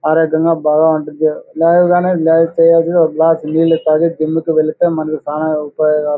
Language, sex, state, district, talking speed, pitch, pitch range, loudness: Telugu, male, Andhra Pradesh, Anantapur, 135 wpm, 160 Hz, 155-165 Hz, -13 LUFS